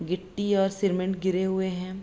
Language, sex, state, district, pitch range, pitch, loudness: Hindi, female, Bihar, Araria, 185-195 Hz, 190 Hz, -27 LUFS